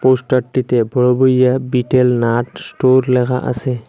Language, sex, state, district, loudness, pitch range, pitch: Bengali, male, Assam, Hailakandi, -15 LUFS, 125-130 Hz, 125 Hz